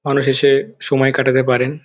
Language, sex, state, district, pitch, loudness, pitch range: Bengali, male, West Bengal, Dakshin Dinajpur, 135 Hz, -15 LUFS, 130-140 Hz